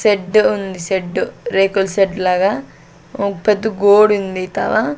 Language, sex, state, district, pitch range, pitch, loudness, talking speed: Telugu, female, Andhra Pradesh, Sri Satya Sai, 185-210 Hz, 195 Hz, -16 LUFS, 120 wpm